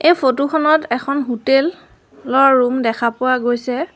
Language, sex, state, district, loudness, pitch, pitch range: Assamese, female, Assam, Sonitpur, -16 LUFS, 260 Hz, 245-285 Hz